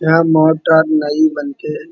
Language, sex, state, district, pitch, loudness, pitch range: Hindi, male, Uttar Pradesh, Muzaffarnagar, 155 Hz, -13 LUFS, 150-160 Hz